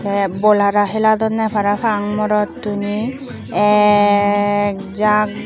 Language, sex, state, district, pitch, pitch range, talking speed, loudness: Chakma, female, Tripura, Unakoti, 210 Hz, 205-215 Hz, 90 wpm, -16 LUFS